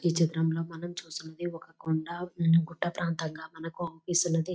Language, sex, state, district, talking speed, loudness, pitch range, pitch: Telugu, female, Telangana, Nalgonda, 160 wpm, -31 LUFS, 165-175 Hz, 165 Hz